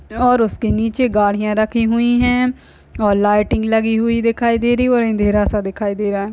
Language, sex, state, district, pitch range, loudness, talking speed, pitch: Hindi, female, Uttar Pradesh, Budaun, 210-240 Hz, -16 LUFS, 210 wpm, 225 Hz